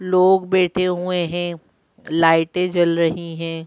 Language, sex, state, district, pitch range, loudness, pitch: Hindi, female, Madhya Pradesh, Bhopal, 165-180 Hz, -19 LUFS, 175 Hz